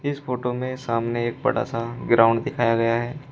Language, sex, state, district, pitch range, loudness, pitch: Hindi, male, Uttar Pradesh, Shamli, 115-130 Hz, -23 LUFS, 120 Hz